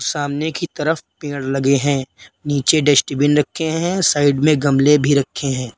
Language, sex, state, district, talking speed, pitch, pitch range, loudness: Hindi, male, Uttar Pradesh, Lalitpur, 165 wpm, 145 Hz, 140-155 Hz, -17 LUFS